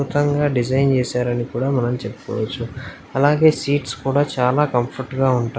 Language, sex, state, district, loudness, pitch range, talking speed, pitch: Telugu, male, Andhra Pradesh, Anantapur, -20 LUFS, 120-140 Hz, 130 wpm, 130 Hz